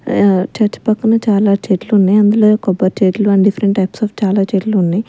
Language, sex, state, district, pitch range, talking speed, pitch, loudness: Telugu, female, Andhra Pradesh, Sri Satya Sai, 195-215 Hz, 190 wpm, 205 Hz, -13 LUFS